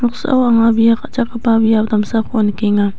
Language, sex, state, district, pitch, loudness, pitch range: Garo, female, Meghalaya, West Garo Hills, 230 Hz, -14 LUFS, 215-240 Hz